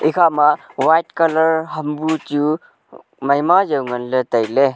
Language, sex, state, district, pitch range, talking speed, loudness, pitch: Wancho, male, Arunachal Pradesh, Longding, 135-160 Hz, 125 wpm, -17 LUFS, 150 Hz